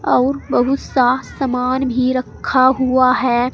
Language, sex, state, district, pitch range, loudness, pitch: Hindi, female, Uttar Pradesh, Saharanpur, 255-260 Hz, -16 LUFS, 255 Hz